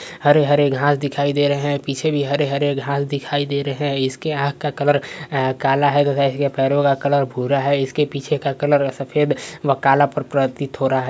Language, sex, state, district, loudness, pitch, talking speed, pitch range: Hindi, male, Uttar Pradesh, Varanasi, -19 LUFS, 140 Hz, 205 wpm, 140-145 Hz